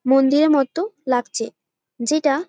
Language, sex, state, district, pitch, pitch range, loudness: Bengali, female, West Bengal, Jalpaiguri, 275 Hz, 255-310 Hz, -19 LUFS